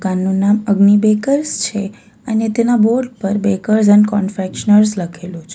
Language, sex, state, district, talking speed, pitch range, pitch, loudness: Gujarati, female, Gujarat, Valsad, 150 wpm, 195-220 Hz, 205 Hz, -14 LUFS